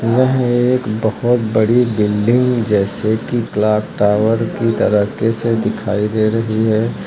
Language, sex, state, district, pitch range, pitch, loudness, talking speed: Hindi, male, Uttar Pradesh, Lucknow, 105-120 Hz, 110 Hz, -16 LUFS, 135 wpm